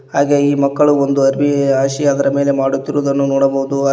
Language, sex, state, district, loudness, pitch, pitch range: Kannada, male, Karnataka, Koppal, -14 LUFS, 140 Hz, 135-140 Hz